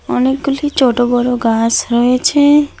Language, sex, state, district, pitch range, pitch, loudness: Bengali, female, West Bengal, Alipurduar, 240-285 Hz, 250 Hz, -13 LUFS